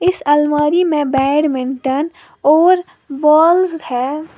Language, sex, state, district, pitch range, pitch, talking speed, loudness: Hindi, female, Uttar Pradesh, Lalitpur, 280-335 Hz, 300 Hz, 95 wpm, -14 LUFS